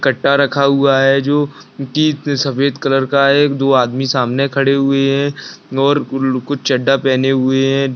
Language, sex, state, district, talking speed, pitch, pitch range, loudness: Hindi, male, Bihar, Saharsa, 175 wpm, 135 Hz, 135-140 Hz, -14 LUFS